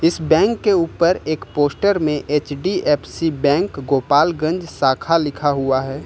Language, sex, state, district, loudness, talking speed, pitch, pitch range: Hindi, male, Uttar Pradesh, Lucknow, -18 LUFS, 140 wpm, 155 Hz, 140-170 Hz